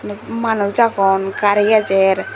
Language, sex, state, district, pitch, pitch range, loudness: Chakma, female, Tripura, Dhalai, 200 Hz, 195-220 Hz, -16 LUFS